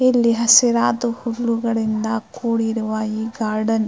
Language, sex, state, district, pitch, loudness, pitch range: Kannada, female, Karnataka, Mysore, 225 Hz, -19 LUFS, 220-235 Hz